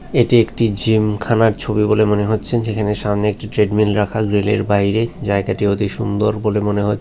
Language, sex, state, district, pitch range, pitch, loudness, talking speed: Bengali, male, Tripura, West Tripura, 105-110 Hz, 105 Hz, -17 LUFS, 170 wpm